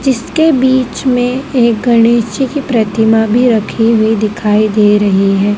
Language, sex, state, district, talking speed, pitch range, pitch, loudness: Hindi, female, Madhya Pradesh, Dhar, 160 wpm, 215-255 Hz, 230 Hz, -11 LUFS